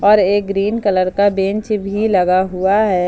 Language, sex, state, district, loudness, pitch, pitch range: Hindi, female, Jharkhand, Ranchi, -15 LUFS, 200 Hz, 190-205 Hz